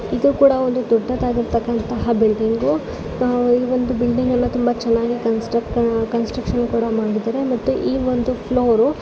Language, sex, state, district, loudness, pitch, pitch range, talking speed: Kannada, female, Karnataka, Dakshina Kannada, -19 LUFS, 240 Hz, 230-250 Hz, 120 wpm